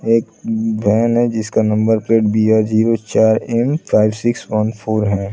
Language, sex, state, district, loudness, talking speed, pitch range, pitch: Hindi, male, Bihar, Saran, -16 LUFS, 170 wpm, 110-115 Hz, 110 Hz